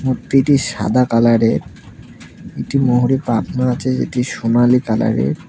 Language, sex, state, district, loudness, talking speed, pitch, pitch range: Bengali, male, West Bengal, Cooch Behar, -16 LUFS, 110 wpm, 125 Hz, 115-130 Hz